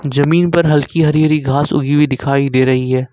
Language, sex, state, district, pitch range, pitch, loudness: Hindi, male, Jharkhand, Ranchi, 135-155 Hz, 145 Hz, -13 LUFS